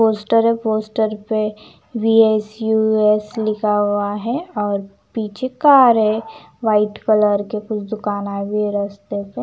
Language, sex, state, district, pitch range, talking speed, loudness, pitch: Hindi, female, Punjab, Kapurthala, 210-225 Hz, 145 wpm, -18 LUFS, 215 Hz